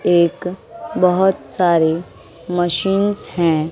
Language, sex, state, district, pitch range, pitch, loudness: Hindi, female, Bihar, West Champaran, 165-190 Hz, 180 Hz, -18 LUFS